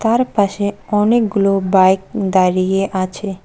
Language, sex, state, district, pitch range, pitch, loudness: Bengali, female, West Bengal, Cooch Behar, 190-210 Hz, 195 Hz, -16 LUFS